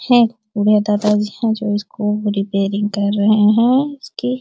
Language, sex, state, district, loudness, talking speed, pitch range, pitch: Hindi, female, Uttar Pradesh, Deoria, -17 LUFS, 165 wpm, 205-230 Hz, 210 Hz